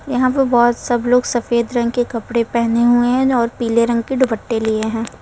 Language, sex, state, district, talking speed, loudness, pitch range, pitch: Hindi, female, Uttar Pradesh, Lalitpur, 220 wpm, -16 LUFS, 235-245 Hz, 240 Hz